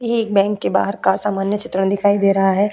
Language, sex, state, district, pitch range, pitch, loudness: Hindi, female, Uttar Pradesh, Budaun, 195-205 Hz, 200 Hz, -17 LUFS